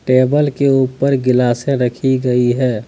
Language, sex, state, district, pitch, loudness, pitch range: Hindi, male, Jharkhand, Deoghar, 130 Hz, -15 LUFS, 125-135 Hz